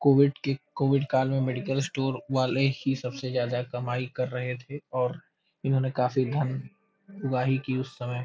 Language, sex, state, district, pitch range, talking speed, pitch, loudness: Hindi, male, Uttar Pradesh, Deoria, 125-140 Hz, 165 wpm, 130 Hz, -28 LUFS